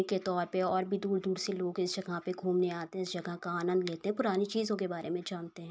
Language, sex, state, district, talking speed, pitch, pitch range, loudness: Hindi, female, Uttar Pradesh, Ghazipur, 285 wpm, 185 Hz, 175-190 Hz, -34 LUFS